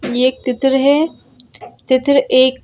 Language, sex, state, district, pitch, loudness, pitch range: Hindi, female, Madhya Pradesh, Bhopal, 260 Hz, -14 LUFS, 255-275 Hz